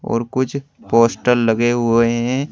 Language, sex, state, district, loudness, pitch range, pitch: Hindi, male, Uttar Pradesh, Saharanpur, -17 LUFS, 115-130 Hz, 120 Hz